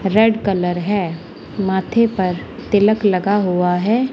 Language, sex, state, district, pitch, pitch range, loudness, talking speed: Hindi, female, Punjab, Kapurthala, 195 Hz, 180-215 Hz, -17 LUFS, 130 wpm